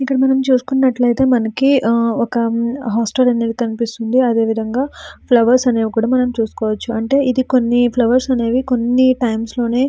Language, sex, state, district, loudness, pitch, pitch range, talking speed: Telugu, female, Andhra Pradesh, Srikakulam, -16 LUFS, 245 Hz, 230-255 Hz, 140 wpm